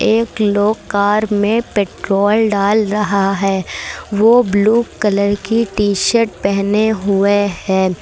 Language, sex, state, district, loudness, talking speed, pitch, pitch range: Hindi, female, Uttar Pradesh, Lucknow, -15 LUFS, 125 wpm, 205 Hz, 200-215 Hz